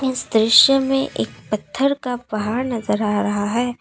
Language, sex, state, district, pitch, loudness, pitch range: Hindi, female, Assam, Kamrup Metropolitan, 230 Hz, -19 LUFS, 210-260 Hz